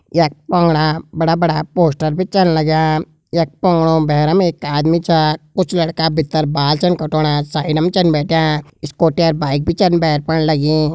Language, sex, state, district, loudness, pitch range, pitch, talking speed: Garhwali, male, Uttarakhand, Uttarkashi, -15 LUFS, 155-170 Hz, 160 Hz, 170 wpm